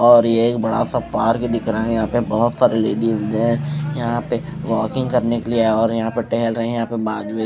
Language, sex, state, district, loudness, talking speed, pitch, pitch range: Hindi, male, Odisha, Malkangiri, -19 LUFS, 250 wpm, 115 Hz, 110-120 Hz